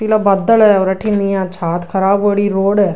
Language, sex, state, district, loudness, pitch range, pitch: Rajasthani, female, Rajasthan, Nagaur, -14 LUFS, 190-205 Hz, 200 Hz